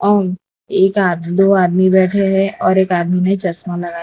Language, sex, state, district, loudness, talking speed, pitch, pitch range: Hindi, female, Gujarat, Valsad, -14 LUFS, 195 wpm, 185 Hz, 180-195 Hz